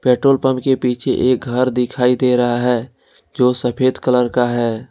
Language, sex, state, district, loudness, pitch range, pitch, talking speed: Hindi, male, Jharkhand, Ranchi, -16 LUFS, 125-130 Hz, 125 Hz, 185 wpm